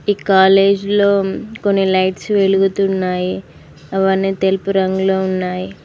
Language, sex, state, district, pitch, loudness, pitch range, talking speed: Telugu, female, Telangana, Mahabubabad, 190 Hz, -15 LUFS, 190-195 Hz, 90 wpm